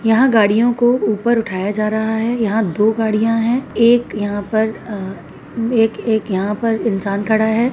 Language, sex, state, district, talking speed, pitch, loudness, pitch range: Hindi, female, Uttar Pradesh, Etah, 180 wpm, 220 Hz, -17 LUFS, 210-230 Hz